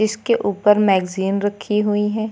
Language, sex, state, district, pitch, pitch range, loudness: Hindi, female, Uttar Pradesh, Lucknow, 210 Hz, 200-210 Hz, -18 LUFS